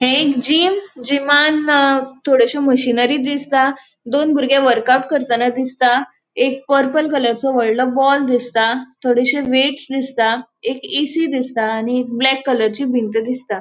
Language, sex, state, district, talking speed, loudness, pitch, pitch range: Konkani, female, Goa, North and South Goa, 130 wpm, -16 LUFS, 260 Hz, 245-280 Hz